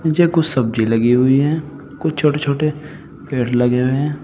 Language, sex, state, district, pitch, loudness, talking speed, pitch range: Hindi, male, Uttar Pradesh, Saharanpur, 145 Hz, -17 LUFS, 185 wpm, 125-155 Hz